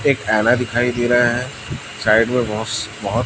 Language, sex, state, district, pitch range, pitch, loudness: Hindi, male, Chhattisgarh, Raipur, 110-125 Hz, 120 Hz, -18 LUFS